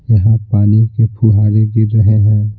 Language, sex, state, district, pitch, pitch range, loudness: Hindi, male, Bihar, Patna, 110 Hz, 105-110 Hz, -12 LUFS